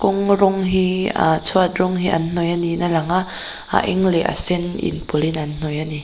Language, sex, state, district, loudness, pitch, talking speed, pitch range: Mizo, female, Mizoram, Aizawl, -18 LUFS, 175 Hz, 250 wpm, 160-185 Hz